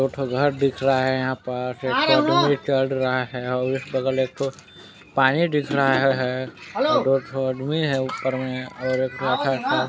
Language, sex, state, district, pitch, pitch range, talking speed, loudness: Hindi, male, Chhattisgarh, Balrampur, 130 Hz, 130-135 Hz, 195 wpm, -22 LUFS